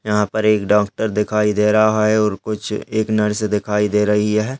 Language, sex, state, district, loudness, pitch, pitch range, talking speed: Hindi, male, Bihar, Jamui, -17 LUFS, 105 Hz, 105-110 Hz, 210 wpm